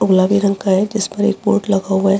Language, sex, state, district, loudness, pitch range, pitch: Hindi, female, Chhattisgarh, Bastar, -16 LUFS, 190-210 Hz, 200 Hz